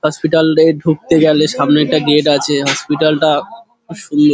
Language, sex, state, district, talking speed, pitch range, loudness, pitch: Bengali, male, West Bengal, Dakshin Dinajpur, 165 wpm, 150-165 Hz, -13 LUFS, 155 Hz